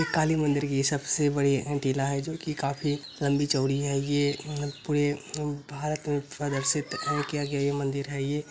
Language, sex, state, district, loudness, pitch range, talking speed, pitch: Maithili, male, Bihar, Araria, -28 LUFS, 140-150 Hz, 155 wpm, 145 Hz